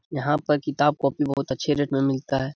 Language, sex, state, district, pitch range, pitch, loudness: Hindi, male, Bihar, Lakhisarai, 135-145 Hz, 140 Hz, -24 LUFS